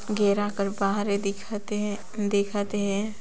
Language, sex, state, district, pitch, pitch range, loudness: Sadri, female, Chhattisgarh, Jashpur, 205 Hz, 200-210 Hz, -27 LUFS